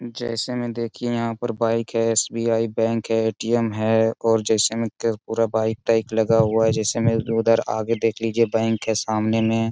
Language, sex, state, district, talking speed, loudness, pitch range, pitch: Hindi, male, Bihar, Jamui, 200 wpm, -21 LUFS, 110-115 Hz, 115 Hz